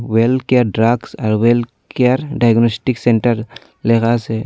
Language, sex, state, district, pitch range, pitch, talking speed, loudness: Bengali, female, Tripura, Unakoti, 115-125 Hz, 115 Hz, 135 wpm, -15 LUFS